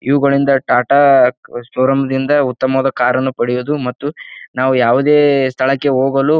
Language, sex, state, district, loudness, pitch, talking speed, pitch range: Kannada, male, Karnataka, Bijapur, -14 LUFS, 135 Hz, 130 wpm, 130-140 Hz